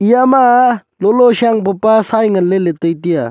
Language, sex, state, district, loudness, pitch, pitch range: Wancho, male, Arunachal Pradesh, Longding, -12 LUFS, 220 Hz, 190-240 Hz